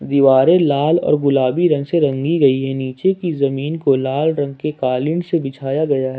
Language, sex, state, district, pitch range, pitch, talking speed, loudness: Hindi, male, Jharkhand, Ranchi, 135-160 Hz, 140 Hz, 205 wpm, -17 LUFS